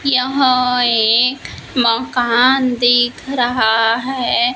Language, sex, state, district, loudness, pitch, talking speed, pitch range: Hindi, female, Maharashtra, Gondia, -14 LUFS, 245 Hz, 80 wpm, 235-255 Hz